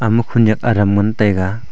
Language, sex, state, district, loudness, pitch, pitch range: Wancho, male, Arunachal Pradesh, Longding, -15 LUFS, 110 Hz, 100-115 Hz